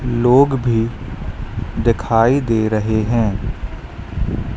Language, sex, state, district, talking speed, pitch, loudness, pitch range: Hindi, female, Madhya Pradesh, Katni, 80 wpm, 110 Hz, -17 LUFS, 105-120 Hz